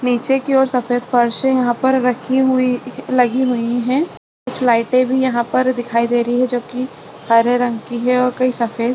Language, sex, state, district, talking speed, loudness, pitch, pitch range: Hindi, female, Chhattisgarh, Balrampur, 215 wpm, -16 LUFS, 250 Hz, 240-255 Hz